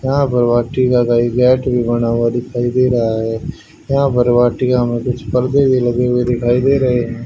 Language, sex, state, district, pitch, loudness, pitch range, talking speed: Hindi, male, Haryana, Jhajjar, 125 Hz, -15 LUFS, 120-130 Hz, 205 wpm